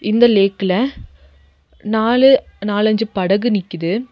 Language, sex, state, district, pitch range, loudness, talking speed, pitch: Tamil, female, Tamil Nadu, Nilgiris, 185-230 Hz, -16 LUFS, 85 wpm, 205 Hz